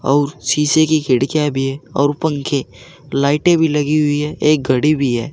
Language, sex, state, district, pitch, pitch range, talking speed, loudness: Hindi, male, Uttar Pradesh, Saharanpur, 145 Hz, 135-155 Hz, 190 wpm, -16 LUFS